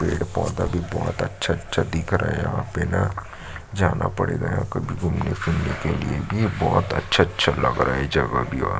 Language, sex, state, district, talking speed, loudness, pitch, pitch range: Hindi, male, Chhattisgarh, Sukma, 175 wpm, -23 LUFS, 85 Hz, 80-105 Hz